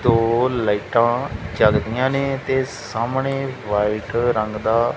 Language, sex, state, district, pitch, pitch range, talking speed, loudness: Punjabi, male, Punjab, Kapurthala, 115 Hz, 110-130 Hz, 110 wpm, -20 LUFS